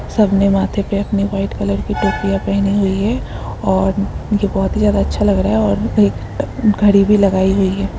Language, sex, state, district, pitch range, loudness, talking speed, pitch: Hindi, female, Uttar Pradesh, Deoria, 190-205 Hz, -16 LUFS, 205 wpm, 195 Hz